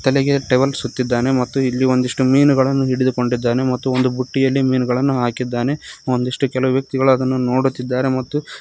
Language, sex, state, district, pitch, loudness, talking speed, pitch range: Kannada, male, Karnataka, Koppal, 130 Hz, -18 LUFS, 130 wpm, 125-135 Hz